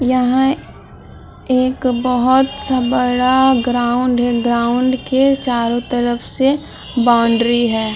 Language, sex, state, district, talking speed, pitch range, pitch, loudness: Hindi, female, Uttar Pradesh, Muzaffarnagar, 105 wpm, 240-260 Hz, 250 Hz, -15 LUFS